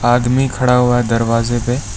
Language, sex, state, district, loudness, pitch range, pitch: Hindi, male, West Bengal, Alipurduar, -15 LUFS, 115-125 Hz, 120 Hz